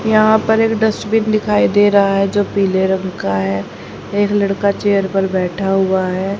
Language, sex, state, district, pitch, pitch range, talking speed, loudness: Hindi, female, Haryana, Rohtak, 200 Hz, 190-210 Hz, 190 wpm, -15 LUFS